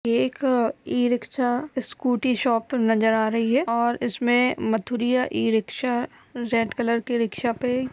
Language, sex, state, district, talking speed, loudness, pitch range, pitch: Hindi, female, Uttar Pradesh, Budaun, 135 wpm, -23 LUFS, 230-250 Hz, 240 Hz